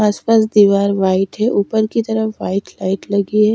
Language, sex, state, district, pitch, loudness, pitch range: Hindi, female, Chhattisgarh, Raipur, 210 Hz, -16 LUFS, 200-220 Hz